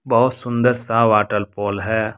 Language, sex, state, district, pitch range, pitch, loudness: Hindi, male, Jharkhand, Deoghar, 105-120 Hz, 110 Hz, -18 LUFS